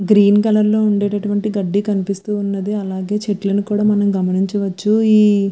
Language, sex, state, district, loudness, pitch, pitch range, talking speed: Telugu, female, Andhra Pradesh, Visakhapatnam, -16 LUFS, 205 Hz, 195-210 Hz, 140 wpm